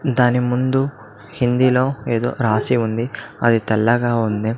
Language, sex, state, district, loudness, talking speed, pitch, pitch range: Telugu, male, Telangana, Mahabubabad, -18 LUFS, 130 wpm, 120 Hz, 110-125 Hz